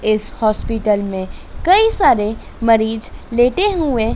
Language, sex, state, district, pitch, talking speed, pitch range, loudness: Hindi, female, Madhya Pradesh, Dhar, 225 Hz, 115 wpm, 215-310 Hz, -16 LUFS